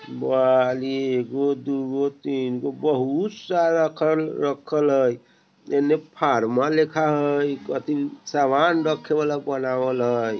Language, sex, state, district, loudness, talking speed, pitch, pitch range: Bajjika, male, Bihar, Vaishali, -22 LUFS, 100 wpm, 140 Hz, 130-155 Hz